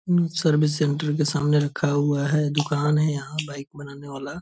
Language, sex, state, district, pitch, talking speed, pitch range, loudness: Hindi, male, Bihar, Purnia, 150 Hz, 190 wpm, 145-150 Hz, -23 LUFS